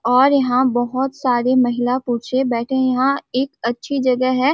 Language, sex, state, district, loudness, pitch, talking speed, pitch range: Hindi, female, Chhattisgarh, Balrampur, -18 LUFS, 255 Hz, 170 wpm, 245-265 Hz